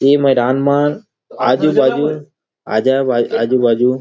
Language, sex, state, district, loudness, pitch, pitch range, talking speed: Chhattisgarhi, male, Chhattisgarh, Rajnandgaon, -14 LUFS, 135 Hz, 125-145 Hz, 165 wpm